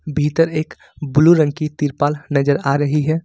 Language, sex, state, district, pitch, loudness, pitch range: Hindi, male, Jharkhand, Ranchi, 150 Hz, -17 LUFS, 145-155 Hz